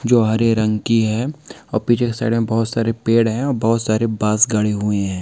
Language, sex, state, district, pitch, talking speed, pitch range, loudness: Hindi, male, Chhattisgarh, Jashpur, 115 Hz, 240 wpm, 110-115 Hz, -18 LUFS